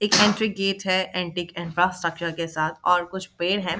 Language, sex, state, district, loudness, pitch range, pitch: Hindi, female, Bihar, Jahanabad, -24 LUFS, 170-190 Hz, 180 Hz